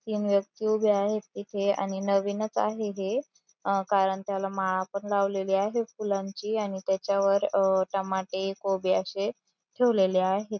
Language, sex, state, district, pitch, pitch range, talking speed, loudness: Marathi, female, Maharashtra, Dhule, 200 Hz, 195-210 Hz, 135 wpm, -28 LUFS